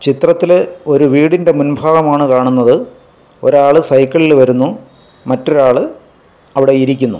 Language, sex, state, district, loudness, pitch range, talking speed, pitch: Malayalam, male, Kerala, Kasaragod, -11 LUFS, 135-160 Hz, 100 wpm, 145 Hz